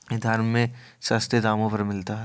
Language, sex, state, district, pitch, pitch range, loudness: Hindi, male, Uttar Pradesh, Jalaun, 110 Hz, 110-120 Hz, -25 LUFS